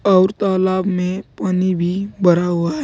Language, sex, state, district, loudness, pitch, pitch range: Hindi, male, Uttar Pradesh, Saharanpur, -18 LUFS, 185 Hz, 175-190 Hz